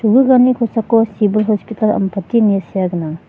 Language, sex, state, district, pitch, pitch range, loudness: Garo, female, Meghalaya, West Garo Hills, 215 Hz, 195-230 Hz, -14 LUFS